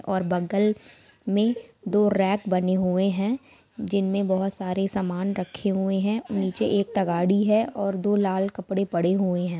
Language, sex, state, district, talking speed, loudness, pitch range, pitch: Hindi, female, Jharkhand, Sahebganj, 160 wpm, -24 LUFS, 185-205 Hz, 195 Hz